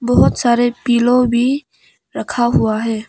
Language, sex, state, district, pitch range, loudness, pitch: Hindi, female, Arunachal Pradesh, Papum Pare, 235-245 Hz, -15 LUFS, 240 Hz